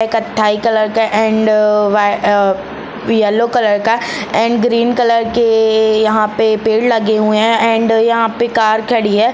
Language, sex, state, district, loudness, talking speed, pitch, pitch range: Hindi, female, Jharkhand, Jamtara, -13 LUFS, 160 wpm, 220 Hz, 215-230 Hz